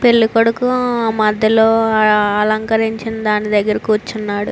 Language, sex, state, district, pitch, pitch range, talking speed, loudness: Telugu, female, Andhra Pradesh, Chittoor, 220 Hz, 215-225 Hz, 95 wpm, -15 LUFS